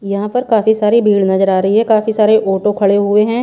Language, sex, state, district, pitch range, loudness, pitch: Hindi, female, Haryana, Charkhi Dadri, 200-220 Hz, -13 LUFS, 210 Hz